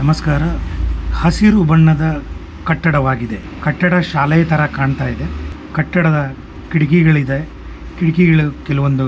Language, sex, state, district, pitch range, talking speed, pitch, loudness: Kannada, male, Karnataka, Mysore, 135-165 Hz, 80 wpm, 150 Hz, -15 LUFS